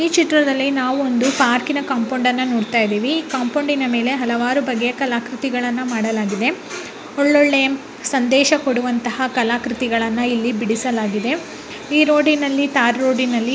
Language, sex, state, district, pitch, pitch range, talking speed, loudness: Kannada, male, Karnataka, Bellary, 255 Hz, 240-280 Hz, 115 wpm, -18 LUFS